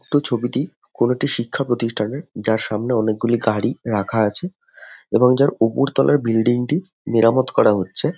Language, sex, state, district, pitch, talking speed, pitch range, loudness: Bengali, male, West Bengal, Jhargram, 120 Hz, 155 wpm, 110-140 Hz, -19 LUFS